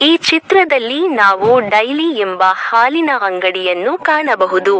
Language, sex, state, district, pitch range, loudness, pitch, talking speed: Kannada, female, Karnataka, Koppal, 195-315 Hz, -13 LUFS, 235 Hz, 100 wpm